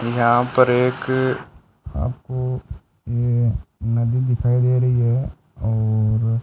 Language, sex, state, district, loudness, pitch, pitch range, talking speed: Hindi, male, Rajasthan, Bikaner, -20 LUFS, 120 Hz, 115-125 Hz, 105 wpm